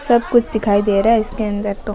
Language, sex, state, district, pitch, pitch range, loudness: Rajasthani, female, Rajasthan, Nagaur, 215 Hz, 205-230 Hz, -16 LUFS